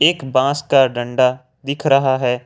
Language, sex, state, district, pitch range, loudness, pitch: Hindi, male, Jharkhand, Ranchi, 125-140 Hz, -17 LUFS, 130 Hz